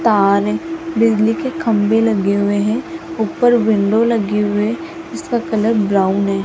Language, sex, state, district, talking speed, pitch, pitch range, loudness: Hindi, female, Rajasthan, Jaipur, 150 wpm, 210 Hz, 195-230 Hz, -16 LUFS